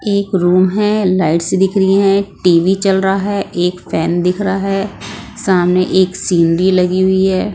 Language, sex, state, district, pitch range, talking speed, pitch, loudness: Hindi, female, Punjab, Pathankot, 180-195 Hz, 175 wpm, 190 Hz, -14 LUFS